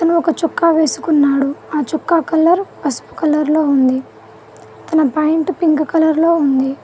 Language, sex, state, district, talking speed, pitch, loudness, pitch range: Telugu, female, Telangana, Mahabubabad, 150 wpm, 315 Hz, -15 LUFS, 290-330 Hz